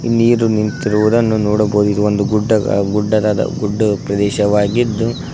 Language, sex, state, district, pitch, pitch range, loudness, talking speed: Kannada, male, Karnataka, Koppal, 105 Hz, 105-110 Hz, -15 LUFS, 100 wpm